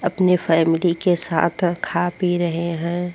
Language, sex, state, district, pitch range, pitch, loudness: Hindi, female, Bihar, Vaishali, 170-180 Hz, 175 Hz, -20 LUFS